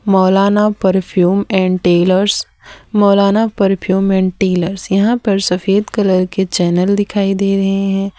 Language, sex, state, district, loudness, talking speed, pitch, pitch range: Hindi, female, Gujarat, Valsad, -14 LUFS, 130 wpm, 195 Hz, 185-200 Hz